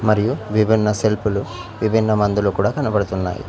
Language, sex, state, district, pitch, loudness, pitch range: Telugu, male, Telangana, Mahabubabad, 105 Hz, -19 LUFS, 100-110 Hz